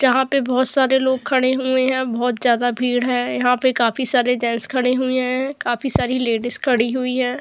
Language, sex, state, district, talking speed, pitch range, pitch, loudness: Hindi, female, Uttar Pradesh, Jyotiba Phule Nagar, 210 wpm, 245-260 Hz, 255 Hz, -19 LUFS